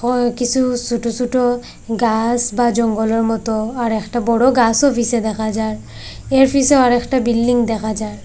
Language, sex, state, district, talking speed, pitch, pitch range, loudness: Bengali, female, Assam, Hailakandi, 160 wpm, 235 Hz, 220-245 Hz, -16 LUFS